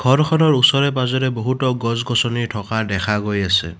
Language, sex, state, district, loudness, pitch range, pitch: Assamese, male, Assam, Kamrup Metropolitan, -18 LUFS, 105-130 Hz, 120 Hz